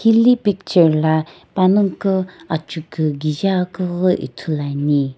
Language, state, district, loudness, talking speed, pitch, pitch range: Sumi, Nagaland, Dimapur, -18 LUFS, 105 wpm, 175 Hz, 155-195 Hz